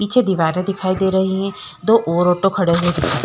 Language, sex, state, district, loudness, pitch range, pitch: Hindi, female, Uttar Pradesh, Jalaun, -17 LUFS, 175-195 Hz, 190 Hz